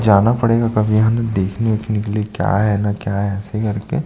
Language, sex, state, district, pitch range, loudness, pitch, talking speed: Hindi, male, Chhattisgarh, Sukma, 100-115 Hz, -18 LUFS, 105 Hz, 235 wpm